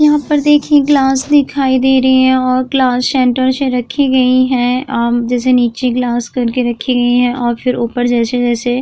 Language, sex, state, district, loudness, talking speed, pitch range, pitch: Hindi, female, Uttar Pradesh, Jyotiba Phule Nagar, -13 LUFS, 205 wpm, 245-265 Hz, 255 Hz